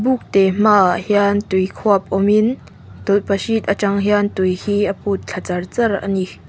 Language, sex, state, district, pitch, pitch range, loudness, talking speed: Mizo, female, Mizoram, Aizawl, 200 Hz, 190-205 Hz, -17 LUFS, 175 wpm